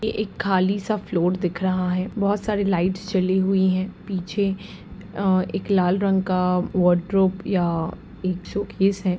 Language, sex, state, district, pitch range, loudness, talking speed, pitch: Hindi, female, Bihar, Sitamarhi, 185-200 Hz, -22 LUFS, 165 wpm, 190 Hz